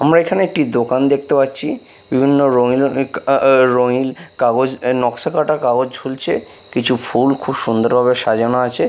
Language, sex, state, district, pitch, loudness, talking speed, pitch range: Bengali, male, Bihar, Katihar, 130 Hz, -16 LUFS, 150 wpm, 125-140 Hz